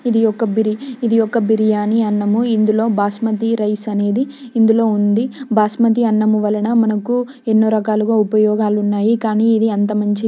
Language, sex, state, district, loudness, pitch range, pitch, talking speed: Telugu, female, Telangana, Nalgonda, -16 LUFS, 210-230 Hz, 220 Hz, 135 wpm